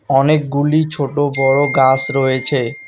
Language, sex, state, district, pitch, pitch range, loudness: Bengali, male, West Bengal, Alipurduar, 140 Hz, 135-145 Hz, -14 LUFS